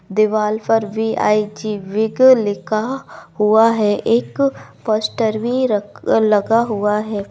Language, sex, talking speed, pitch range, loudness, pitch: Maithili, female, 130 wpm, 210-225 Hz, -17 LUFS, 215 Hz